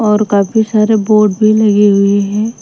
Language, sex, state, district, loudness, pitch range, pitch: Hindi, female, Himachal Pradesh, Shimla, -11 LUFS, 205-215 Hz, 215 Hz